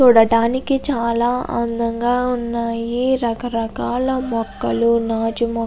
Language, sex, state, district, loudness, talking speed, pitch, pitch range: Telugu, female, Andhra Pradesh, Krishna, -19 LUFS, 95 wpm, 235 Hz, 230-245 Hz